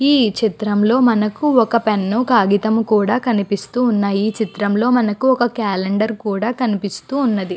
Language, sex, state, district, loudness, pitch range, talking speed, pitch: Telugu, female, Andhra Pradesh, Guntur, -17 LUFS, 205-245 Hz, 135 wpm, 220 Hz